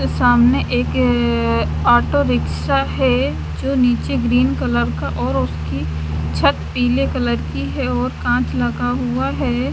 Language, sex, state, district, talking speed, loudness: Hindi, female, Haryana, Charkhi Dadri, 140 wpm, -18 LUFS